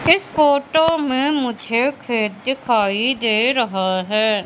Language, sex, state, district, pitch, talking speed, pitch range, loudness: Hindi, female, Madhya Pradesh, Katni, 245 Hz, 120 wpm, 215-280 Hz, -18 LUFS